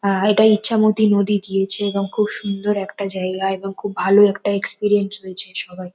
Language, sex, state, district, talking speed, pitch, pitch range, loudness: Bengali, female, West Bengal, North 24 Parganas, 170 wpm, 200 Hz, 195-205 Hz, -18 LUFS